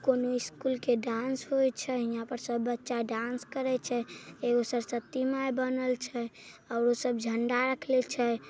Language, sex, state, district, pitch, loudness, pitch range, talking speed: Maithili, female, Bihar, Samastipur, 245 Hz, -31 LUFS, 235-260 Hz, 170 wpm